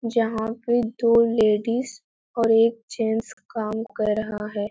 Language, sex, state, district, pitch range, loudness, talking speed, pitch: Hindi, female, Uttar Pradesh, Etah, 220-230 Hz, -23 LUFS, 140 wpm, 225 Hz